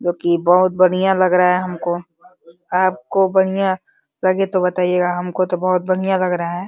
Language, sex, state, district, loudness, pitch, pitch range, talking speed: Hindi, male, Uttar Pradesh, Deoria, -17 LUFS, 185 Hz, 180-190 Hz, 170 wpm